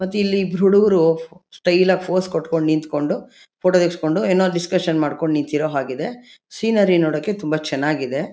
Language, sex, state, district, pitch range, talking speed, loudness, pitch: Kannada, female, Karnataka, Mysore, 155-185 Hz, 150 wpm, -19 LUFS, 175 Hz